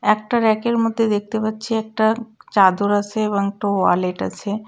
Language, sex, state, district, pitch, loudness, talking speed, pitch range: Bengali, female, West Bengal, Cooch Behar, 215 Hz, -19 LUFS, 155 wpm, 205-220 Hz